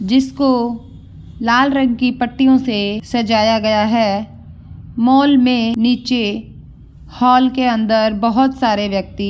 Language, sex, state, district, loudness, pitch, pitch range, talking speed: Hindi, female, Andhra Pradesh, Anantapur, -15 LUFS, 235 Hz, 220-255 Hz, 120 wpm